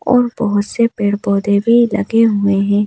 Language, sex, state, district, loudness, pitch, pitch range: Hindi, female, Madhya Pradesh, Bhopal, -14 LUFS, 210 Hz, 205-230 Hz